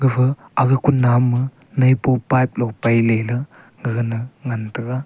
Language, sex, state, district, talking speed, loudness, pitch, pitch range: Wancho, male, Arunachal Pradesh, Longding, 130 wpm, -19 LUFS, 125 Hz, 115-130 Hz